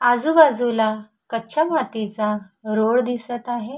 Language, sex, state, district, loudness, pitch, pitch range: Marathi, female, Maharashtra, Chandrapur, -21 LUFS, 235 Hz, 215-245 Hz